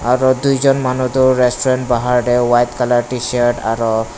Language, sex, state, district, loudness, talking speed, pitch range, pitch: Nagamese, male, Nagaland, Dimapur, -15 LUFS, 170 wpm, 120-130 Hz, 125 Hz